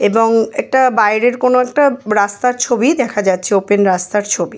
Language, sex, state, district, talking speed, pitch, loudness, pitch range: Bengali, female, West Bengal, Jalpaiguri, 155 wpm, 225 Hz, -14 LUFS, 205-250 Hz